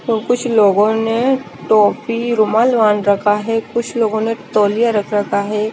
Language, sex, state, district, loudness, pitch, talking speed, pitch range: Hindi, female, Chandigarh, Chandigarh, -15 LUFS, 220 Hz, 165 wpm, 210-235 Hz